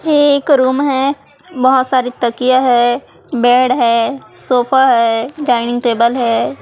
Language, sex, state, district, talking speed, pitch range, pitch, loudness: Hindi, female, Chhattisgarh, Raipur, 135 wpm, 240-270 Hz, 255 Hz, -13 LUFS